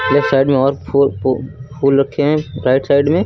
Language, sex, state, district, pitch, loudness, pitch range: Hindi, male, Uttar Pradesh, Lucknow, 140 Hz, -15 LUFS, 135-145 Hz